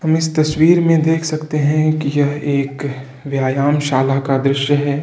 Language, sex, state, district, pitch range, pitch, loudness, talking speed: Hindi, male, Uttar Pradesh, Varanasi, 140-155 Hz, 145 Hz, -16 LUFS, 180 wpm